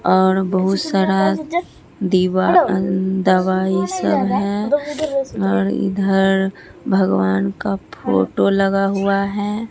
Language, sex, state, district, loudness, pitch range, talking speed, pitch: Hindi, female, Bihar, Katihar, -18 LUFS, 185-195 Hz, 85 wpm, 190 Hz